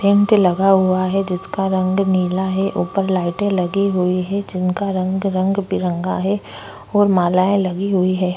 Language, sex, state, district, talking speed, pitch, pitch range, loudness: Hindi, female, Chhattisgarh, Korba, 160 wpm, 190 Hz, 185-195 Hz, -18 LUFS